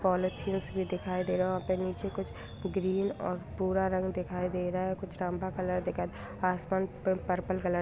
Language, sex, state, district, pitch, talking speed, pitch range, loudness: Hindi, female, Bihar, Vaishali, 185 Hz, 205 wpm, 180-190 Hz, -33 LUFS